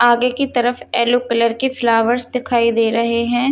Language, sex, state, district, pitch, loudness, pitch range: Hindi, female, Haryana, Charkhi Dadri, 240 Hz, -17 LUFS, 235-250 Hz